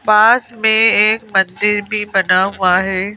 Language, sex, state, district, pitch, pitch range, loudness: Hindi, female, Madhya Pradesh, Bhopal, 210 Hz, 190-220 Hz, -13 LUFS